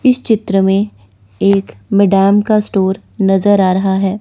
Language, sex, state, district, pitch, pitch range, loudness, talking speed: Hindi, female, Chandigarh, Chandigarh, 195 Hz, 190-205 Hz, -13 LUFS, 155 wpm